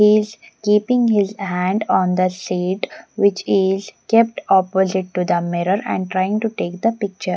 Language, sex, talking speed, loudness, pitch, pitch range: English, female, 165 wpm, -19 LUFS, 195 Hz, 185-210 Hz